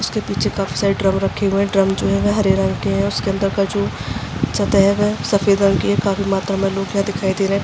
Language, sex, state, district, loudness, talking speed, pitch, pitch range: Hindi, female, Uttar Pradesh, Jalaun, -18 LUFS, 275 wpm, 195 Hz, 195-200 Hz